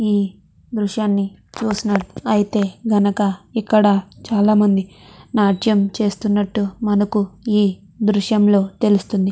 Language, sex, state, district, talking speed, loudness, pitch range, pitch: Telugu, female, Andhra Pradesh, Chittoor, 75 wpm, -18 LUFS, 200-215 Hz, 205 Hz